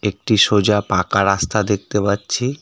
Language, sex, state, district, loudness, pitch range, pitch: Bengali, male, West Bengal, Darjeeling, -17 LUFS, 100-110 Hz, 105 Hz